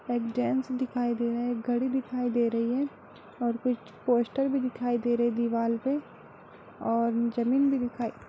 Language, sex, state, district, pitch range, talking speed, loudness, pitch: Hindi, female, Bihar, Kishanganj, 235-255 Hz, 190 wpm, -29 LUFS, 240 Hz